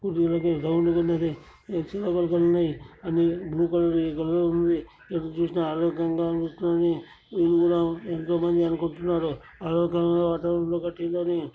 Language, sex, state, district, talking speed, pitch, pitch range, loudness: Telugu, male, Telangana, Nalgonda, 120 wpm, 170 Hz, 165-170 Hz, -25 LUFS